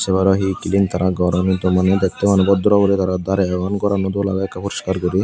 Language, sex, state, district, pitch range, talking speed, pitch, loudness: Chakma, male, Tripura, Unakoti, 90-100 Hz, 230 wpm, 95 Hz, -17 LUFS